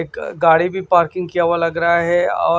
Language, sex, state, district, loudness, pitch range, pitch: Hindi, male, Maharashtra, Washim, -16 LUFS, 170-175 Hz, 170 Hz